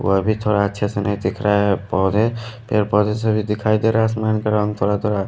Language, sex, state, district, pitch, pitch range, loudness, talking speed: Hindi, male, Delhi, New Delhi, 105 Hz, 100-110 Hz, -19 LUFS, 250 wpm